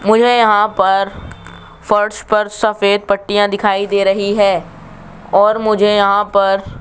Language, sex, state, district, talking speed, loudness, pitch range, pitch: Hindi, male, Rajasthan, Jaipur, 140 wpm, -14 LUFS, 190-210 Hz, 200 Hz